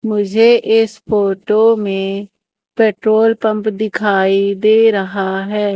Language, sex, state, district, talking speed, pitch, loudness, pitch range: Hindi, female, Madhya Pradesh, Umaria, 105 wpm, 210 Hz, -14 LUFS, 200-220 Hz